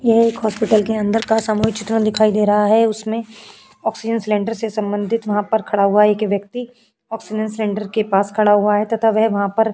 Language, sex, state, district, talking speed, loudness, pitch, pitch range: Hindi, female, Uttar Pradesh, Jyotiba Phule Nagar, 215 wpm, -17 LUFS, 215 Hz, 210-225 Hz